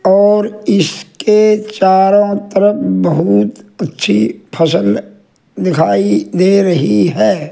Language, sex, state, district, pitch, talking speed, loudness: Hindi, male, Rajasthan, Jaipur, 190 Hz, 90 wpm, -12 LUFS